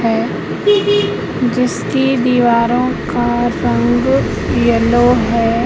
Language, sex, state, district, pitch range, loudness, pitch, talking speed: Hindi, female, Madhya Pradesh, Katni, 230-250 Hz, -14 LUFS, 240 Hz, 75 wpm